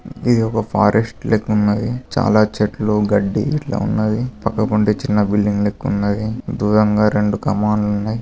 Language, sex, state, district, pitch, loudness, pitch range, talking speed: Telugu, male, Telangana, Karimnagar, 105 Hz, -17 LUFS, 105-115 Hz, 140 wpm